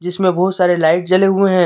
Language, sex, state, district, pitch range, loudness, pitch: Hindi, male, Jharkhand, Deoghar, 180-190 Hz, -14 LUFS, 185 Hz